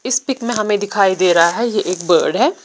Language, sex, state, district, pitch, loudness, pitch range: Hindi, female, Bihar, Patna, 210 Hz, -15 LUFS, 185-245 Hz